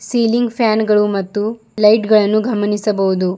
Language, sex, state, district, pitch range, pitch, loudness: Kannada, female, Karnataka, Bidar, 205-225 Hz, 215 Hz, -15 LUFS